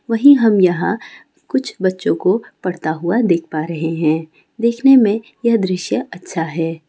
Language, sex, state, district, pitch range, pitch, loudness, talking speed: Hindi, female, West Bengal, Kolkata, 165-230 Hz, 185 Hz, -16 LUFS, 155 wpm